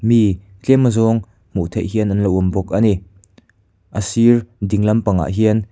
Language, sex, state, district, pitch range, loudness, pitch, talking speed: Mizo, male, Mizoram, Aizawl, 95-115 Hz, -17 LUFS, 105 Hz, 180 wpm